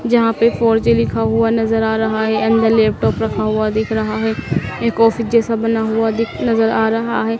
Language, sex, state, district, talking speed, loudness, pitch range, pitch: Hindi, female, Madhya Pradesh, Dhar, 220 wpm, -16 LUFS, 220-225 Hz, 225 Hz